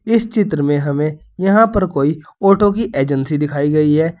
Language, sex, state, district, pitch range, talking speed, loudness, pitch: Hindi, male, Uttar Pradesh, Saharanpur, 145-205 Hz, 185 wpm, -16 LUFS, 155 Hz